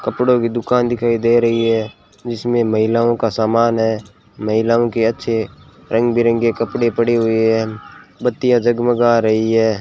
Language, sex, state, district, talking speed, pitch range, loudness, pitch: Hindi, male, Rajasthan, Bikaner, 155 wpm, 110-120 Hz, -16 LUFS, 115 Hz